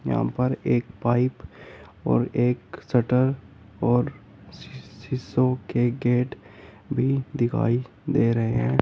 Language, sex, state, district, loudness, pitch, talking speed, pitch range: Hindi, male, Uttar Pradesh, Shamli, -24 LUFS, 120 Hz, 110 wpm, 100-125 Hz